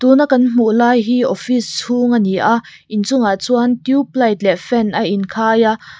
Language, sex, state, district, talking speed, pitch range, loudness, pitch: Mizo, female, Mizoram, Aizawl, 200 wpm, 215-245 Hz, -15 LUFS, 235 Hz